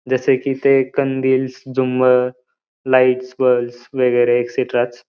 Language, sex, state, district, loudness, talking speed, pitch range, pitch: Marathi, male, Maharashtra, Pune, -17 LUFS, 120 wpm, 125-130 Hz, 130 Hz